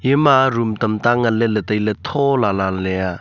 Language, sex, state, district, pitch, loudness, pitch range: Wancho, male, Arunachal Pradesh, Longding, 110 Hz, -17 LUFS, 105-130 Hz